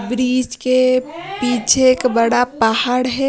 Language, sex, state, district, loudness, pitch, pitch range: Hindi, female, Punjab, Pathankot, -16 LUFS, 255 Hz, 245-255 Hz